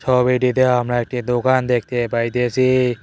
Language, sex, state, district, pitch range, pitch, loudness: Bengali, male, West Bengal, Cooch Behar, 120-130 Hz, 125 Hz, -18 LUFS